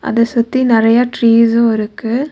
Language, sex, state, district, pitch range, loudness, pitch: Tamil, female, Tamil Nadu, Nilgiris, 230-245 Hz, -12 LUFS, 230 Hz